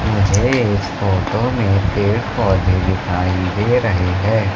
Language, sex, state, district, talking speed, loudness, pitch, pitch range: Hindi, male, Madhya Pradesh, Katni, 130 wpm, -17 LUFS, 100 Hz, 95-110 Hz